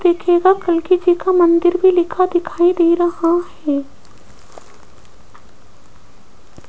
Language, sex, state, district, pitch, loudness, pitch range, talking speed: Hindi, female, Rajasthan, Jaipur, 350 Hz, -15 LUFS, 340-365 Hz, 100 wpm